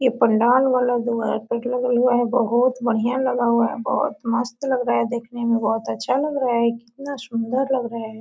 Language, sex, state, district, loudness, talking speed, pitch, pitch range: Hindi, female, Jharkhand, Sahebganj, -21 LUFS, 180 wpm, 240 Hz, 230-255 Hz